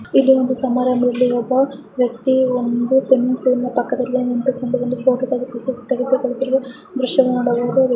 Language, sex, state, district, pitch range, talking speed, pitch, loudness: Kannada, female, Karnataka, Raichur, 250-260 Hz, 105 wpm, 255 Hz, -18 LUFS